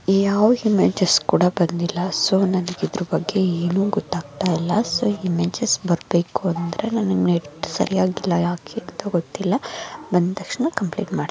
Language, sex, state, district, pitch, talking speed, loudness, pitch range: Kannada, female, Karnataka, Mysore, 180 Hz, 140 wpm, -21 LUFS, 170-200 Hz